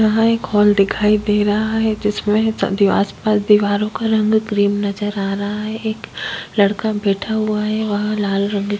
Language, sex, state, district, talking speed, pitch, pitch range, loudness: Hindi, female, Chhattisgarh, Kabirdham, 185 wpm, 210 Hz, 205-220 Hz, -17 LUFS